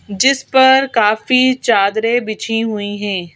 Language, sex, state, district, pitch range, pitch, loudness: Hindi, female, Madhya Pradesh, Bhopal, 205-255 Hz, 225 Hz, -14 LUFS